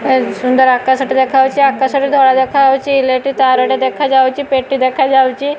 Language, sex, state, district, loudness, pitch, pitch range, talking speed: Odia, female, Odisha, Malkangiri, -12 LUFS, 265 Hz, 260-275 Hz, 160 wpm